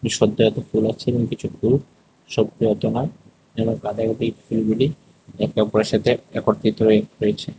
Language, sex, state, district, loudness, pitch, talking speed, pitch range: Bengali, male, Tripura, West Tripura, -21 LUFS, 110 Hz, 105 wpm, 110-115 Hz